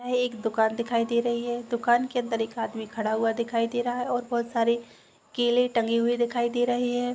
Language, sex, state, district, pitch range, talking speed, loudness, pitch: Hindi, female, Chhattisgarh, Korba, 230-245 Hz, 235 wpm, -26 LUFS, 235 Hz